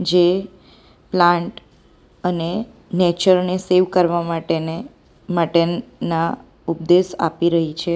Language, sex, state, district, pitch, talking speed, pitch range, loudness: Gujarati, female, Gujarat, Valsad, 175 Hz, 100 wpm, 170-185 Hz, -19 LUFS